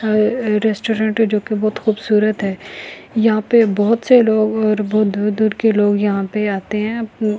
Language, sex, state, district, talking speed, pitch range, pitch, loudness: Hindi, female, Delhi, New Delhi, 170 wpm, 210-220 Hz, 215 Hz, -16 LUFS